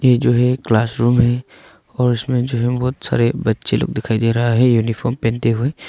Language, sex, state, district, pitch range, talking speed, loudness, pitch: Hindi, male, Arunachal Pradesh, Longding, 115-125 Hz, 195 wpm, -17 LUFS, 120 Hz